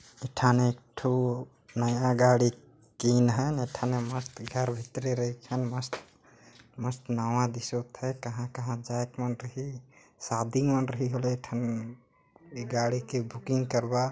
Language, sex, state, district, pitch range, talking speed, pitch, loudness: Chhattisgarhi, male, Chhattisgarh, Jashpur, 120-130 Hz, 145 wpm, 125 Hz, -30 LUFS